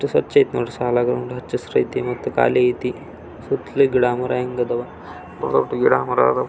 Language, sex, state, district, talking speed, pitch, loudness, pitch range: Kannada, male, Karnataka, Belgaum, 165 wpm, 120 Hz, -20 LUFS, 90-125 Hz